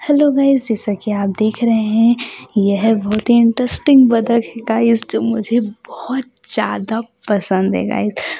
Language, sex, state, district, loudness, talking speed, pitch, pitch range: Hindi, female, Delhi, New Delhi, -16 LUFS, 170 wpm, 230 Hz, 215-240 Hz